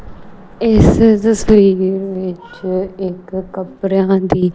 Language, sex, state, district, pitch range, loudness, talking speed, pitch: Punjabi, female, Punjab, Kapurthala, 185-200 Hz, -14 LUFS, 80 wpm, 190 Hz